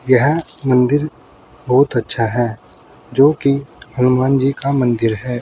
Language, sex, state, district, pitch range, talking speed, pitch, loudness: Hindi, male, Uttar Pradesh, Saharanpur, 120-140 Hz, 135 wpm, 130 Hz, -16 LUFS